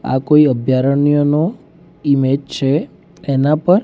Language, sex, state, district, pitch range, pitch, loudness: Gujarati, male, Gujarat, Gandhinagar, 135-155 Hz, 145 Hz, -15 LUFS